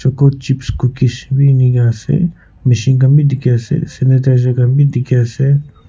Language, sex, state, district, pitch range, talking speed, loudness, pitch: Nagamese, male, Nagaland, Kohima, 125-140 Hz, 155 wpm, -13 LUFS, 130 Hz